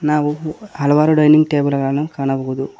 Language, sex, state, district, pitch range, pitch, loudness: Kannada, male, Karnataka, Koppal, 140-155 Hz, 150 Hz, -16 LUFS